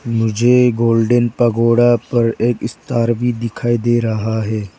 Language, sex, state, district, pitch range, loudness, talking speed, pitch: Hindi, female, Arunachal Pradesh, Lower Dibang Valley, 115-120 Hz, -16 LUFS, 135 wpm, 115 Hz